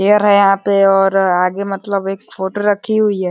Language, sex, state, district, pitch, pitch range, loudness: Hindi, male, Uttar Pradesh, Deoria, 195 Hz, 195-205 Hz, -14 LUFS